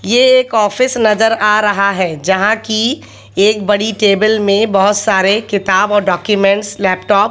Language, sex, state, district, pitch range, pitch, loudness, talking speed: Hindi, male, Haryana, Jhajjar, 200-220 Hz, 205 Hz, -12 LUFS, 165 wpm